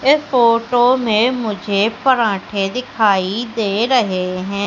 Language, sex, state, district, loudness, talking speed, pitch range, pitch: Hindi, female, Madhya Pradesh, Umaria, -16 LUFS, 115 wpm, 200-245 Hz, 220 Hz